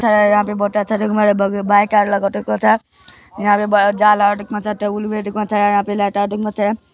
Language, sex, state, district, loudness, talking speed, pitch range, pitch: Hindi, male, Bihar, Madhepura, -16 LUFS, 105 wpm, 205-210 Hz, 205 Hz